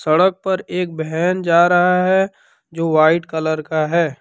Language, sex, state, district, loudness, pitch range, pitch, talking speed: Hindi, male, Jharkhand, Deoghar, -17 LUFS, 160-180 Hz, 170 Hz, 170 wpm